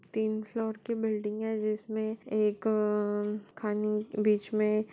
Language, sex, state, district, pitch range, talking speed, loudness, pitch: Hindi, female, Bihar, Saran, 210-220 Hz, 145 wpm, -31 LUFS, 215 Hz